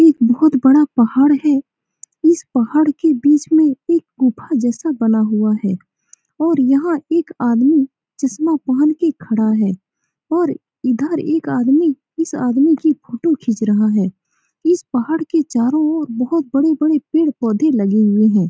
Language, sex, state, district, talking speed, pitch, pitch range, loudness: Hindi, female, Bihar, Saran, 150 wpm, 285 Hz, 240-315 Hz, -16 LUFS